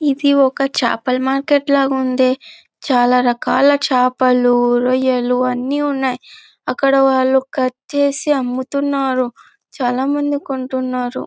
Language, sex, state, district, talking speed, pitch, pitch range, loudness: Telugu, female, Andhra Pradesh, Anantapur, 105 wpm, 260 Hz, 255-280 Hz, -16 LUFS